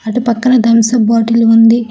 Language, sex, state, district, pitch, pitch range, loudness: Telugu, female, Telangana, Hyderabad, 230 Hz, 225-235 Hz, -10 LUFS